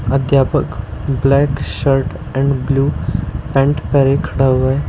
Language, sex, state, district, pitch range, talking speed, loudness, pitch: Hindi, male, Uttar Pradesh, Shamli, 135-140 Hz, 125 wpm, -16 LUFS, 135 Hz